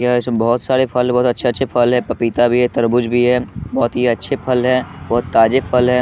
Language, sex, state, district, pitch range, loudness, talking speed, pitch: Hindi, male, Bihar, West Champaran, 120-125 Hz, -16 LUFS, 240 wpm, 125 Hz